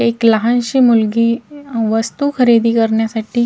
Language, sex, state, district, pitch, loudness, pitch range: Marathi, female, Maharashtra, Washim, 230 Hz, -14 LUFS, 225-245 Hz